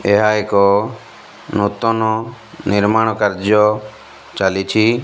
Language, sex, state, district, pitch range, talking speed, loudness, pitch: Odia, male, Odisha, Malkangiri, 100-110 Hz, 70 wpm, -16 LUFS, 105 Hz